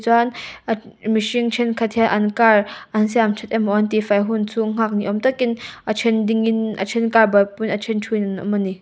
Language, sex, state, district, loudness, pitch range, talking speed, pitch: Mizo, female, Mizoram, Aizawl, -19 LUFS, 210-230 Hz, 210 wpm, 220 Hz